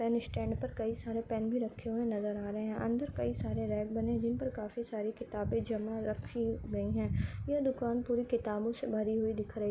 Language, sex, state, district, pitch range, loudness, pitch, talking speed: Marwari, female, Rajasthan, Nagaur, 185-235 Hz, -36 LUFS, 220 Hz, 230 wpm